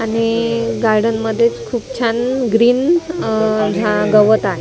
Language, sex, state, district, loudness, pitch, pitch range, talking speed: Marathi, female, Maharashtra, Mumbai Suburban, -15 LUFS, 230 Hz, 220-235 Hz, 145 wpm